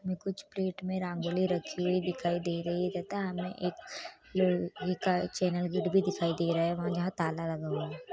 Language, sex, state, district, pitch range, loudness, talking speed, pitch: Chhattisgarhi, female, Chhattisgarh, Korba, 175-185 Hz, -32 LUFS, 200 wpm, 180 Hz